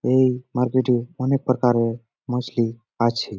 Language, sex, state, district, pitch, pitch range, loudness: Bengali, male, West Bengal, Jalpaiguri, 125 Hz, 115-130 Hz, -22 LUFS